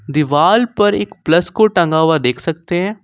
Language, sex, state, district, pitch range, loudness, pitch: Hindi, male, Jharkhand, Ranchi, 160-205 Hz, -14 LUFS, 175 Hz